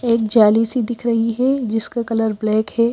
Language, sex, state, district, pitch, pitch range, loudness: Hindi, female, Madhya Pradesh, Bhopal, 230 Hz, 220-235 Hz, -17 LUFS